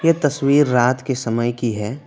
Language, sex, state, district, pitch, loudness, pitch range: Hindi, male, West Bengal, Alipurduar, 125 Hz, -18 LUFS, 120-145 Hz